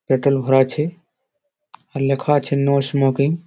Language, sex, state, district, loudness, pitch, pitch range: Bengali, male, West Bengal, Malda, -18 LUFS, 140 Hz, 135-170 Hz